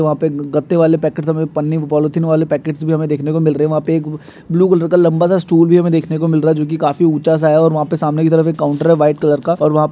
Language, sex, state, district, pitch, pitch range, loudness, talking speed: Hindi, male, Maharashtra, Dhule, 160 Hz, 150-165 Hz, -14 LUFS, 305 wpm